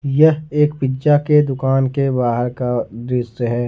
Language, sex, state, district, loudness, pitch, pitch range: Hindi, male, Jharkhand, Ranchi, -17 LUFS, 135 Hz, 125-150 Hz